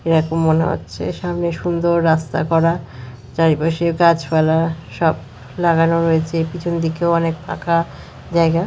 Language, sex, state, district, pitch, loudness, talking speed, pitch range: Bengali, female, West Bengal, Paschim Medinipur, 165 Hz, -18 LUFS, 125 wpm, 160-170 Hz